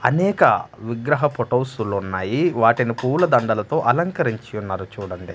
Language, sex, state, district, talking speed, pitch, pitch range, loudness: Telugu, male, Andhra Pradesh, Manyam, 90 wpm, 120 Hz, 105-150 Hz, -20 LUFS